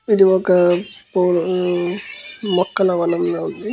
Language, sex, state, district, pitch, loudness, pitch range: Telugu, male, Andhra Pradesh, Krishna, 180 Hz, -18 LUFS, 175-190 Hz